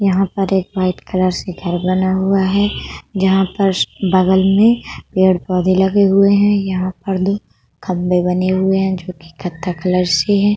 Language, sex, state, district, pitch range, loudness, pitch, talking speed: Hindi, female, Uttar Pradesh, Budaun, 185-195 Hz, -16 LUFS, 190 Hz, 170 wpm